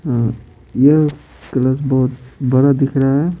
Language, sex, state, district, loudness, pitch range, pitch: Hindi, male, Bihar, Patna, -16 LUFS, 125-140 Hz, 130 Hz